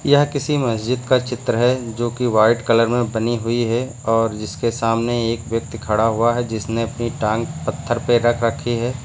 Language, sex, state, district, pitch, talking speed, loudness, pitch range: Hindi, male, Uttar Pradesh, Lucknow, 115 Hz, 200 wpm, -19 LUFS, 115-125 Hz